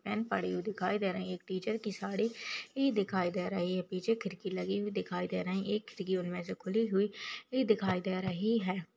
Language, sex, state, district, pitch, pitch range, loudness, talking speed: Hindi, female, Maharashtra, Aurangabad, 195 Hz, 185-210 Hz, -34 LUFS, 200 wpm